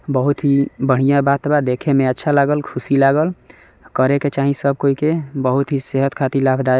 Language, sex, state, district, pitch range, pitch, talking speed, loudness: Maithili, male, Bihar, Samastipur, 135-145 Hz, 140 Hz, 205 wpm, -17 LUFS